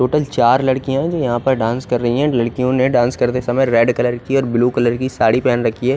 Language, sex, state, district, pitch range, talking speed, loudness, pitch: Hindi, male, Odisha, Khordha, 120-130 Hz, 240 wpm, -16 LUFS, 125 Hz